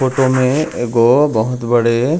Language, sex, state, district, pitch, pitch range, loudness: Chhattisgarhi, male, Chhattisgarh, Raigarh, 125 Hz, 120-130 Hz, -14 LUFS